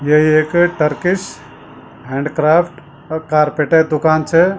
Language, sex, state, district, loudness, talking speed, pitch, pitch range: Garhwali, male, Uttarakhand, Tehri Garhwal, -15 LUFS, 105 wpm, 155 Hz, 150-165 Hz